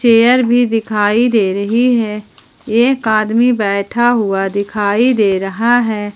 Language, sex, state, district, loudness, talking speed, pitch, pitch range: Hindi, female, Jharkhand, Ranchi, -13 LUFS, 135 wpm, 220 Hz, 205-240 Hz